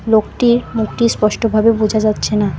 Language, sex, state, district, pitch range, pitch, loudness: Bengali, female, West Bengal, Alipurduar, 215-230 Hz, 215 Hz, -15 LUFS